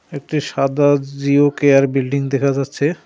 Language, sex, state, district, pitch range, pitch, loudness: Bengali, male, West Bengal, Cooch Behar, 135-145 Hz, 140 Hz, -16 LUFS